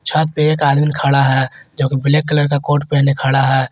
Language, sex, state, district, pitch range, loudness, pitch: Hindi, male, Jharkhand, Garhwa, 135-150 Hz, -15 LUFS, 140 Hz